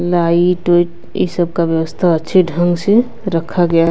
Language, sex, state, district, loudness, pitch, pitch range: Hindi, female, Bihar, West Champaran, -15 LUFS, 175 Hz, 170-180 Hz